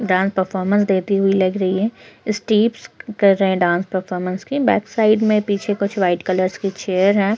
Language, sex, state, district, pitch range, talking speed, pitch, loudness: Hindi, female, Chhattisgarh, Korba, 185-210 Hz, 195 wpm, 195 Hz, -18 LUFS